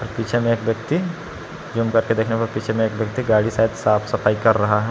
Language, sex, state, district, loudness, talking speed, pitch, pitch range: Hindi, male, Jharkhand, Palamu, -20 LUFS, 230 wpm, 115 Hz, 110-115 Hz